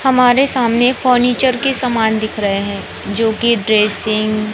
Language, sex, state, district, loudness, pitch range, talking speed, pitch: Hindi, male, Madhya Pradesh, Katni, -14 LUFS, 215-250 Hz, 145 wpm, 230 Hz